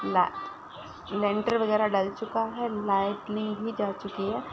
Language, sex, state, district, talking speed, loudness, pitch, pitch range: Hindi, female, Uttar Pradesh, Ghazipur, 160 wpm, -28 LUFS, 210 Hz, 205-225 Hz